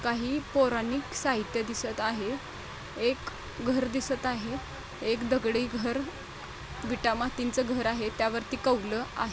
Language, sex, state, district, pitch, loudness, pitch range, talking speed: Marathi, female, Maharashtra, Nagpur, 240 Hz, -30 LUFS, 230-260 Hz, 120 wpm